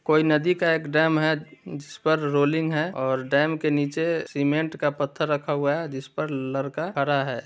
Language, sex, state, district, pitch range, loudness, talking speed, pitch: Hindi, male, Bihar, Muzaffarpur, 140-160 Hz, -24 LUFS, 215 wpm, 150 Hz